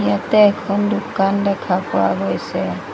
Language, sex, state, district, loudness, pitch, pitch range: Assamese, female, Assam, Sonitpur, -18 LUFS, 200 Hz, 195-210 Hz